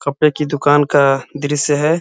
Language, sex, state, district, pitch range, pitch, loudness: Hindi, male, Uttar Pradesh, Ghazipur, 140-150 Hz, 145 Hz, -15 LUFS